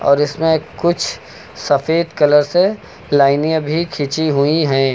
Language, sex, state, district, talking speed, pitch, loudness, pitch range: Hindi, male, Uttar Pradesh, Lucknow, 135 wpm, 155 Hz, -16 LUFS, 145-165 Hz